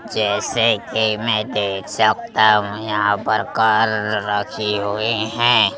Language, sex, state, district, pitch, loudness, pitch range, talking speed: Hindi, male, Madhya Pradesh, Bhopal, 105 Hz, -18 LUFS, 105-110 Hz, 125 wpm